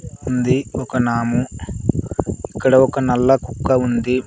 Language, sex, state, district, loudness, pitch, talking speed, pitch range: Telugu, male, Andhra Pradesh, Sri Satya Sai, -18 LUFS, 125 Hz, 115 wpm, 115-130 Hz